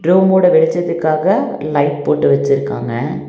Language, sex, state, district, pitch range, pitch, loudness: Tamil, female, Tamil Nadu, Nilgiris, 145-175 Hz, 155 Hz, -14 LUFS